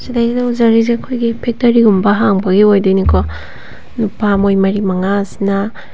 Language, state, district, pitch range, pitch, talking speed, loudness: Manipuri, Manipur, Imphal West, 195-235 Hz, 205 Hz, 130 wpm, -13 LUFS